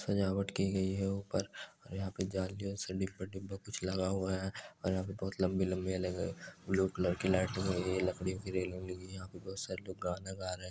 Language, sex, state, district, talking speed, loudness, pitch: Hindi, male, Bihar, Saran, 225 wpm, -37 LUFS, 95 Hz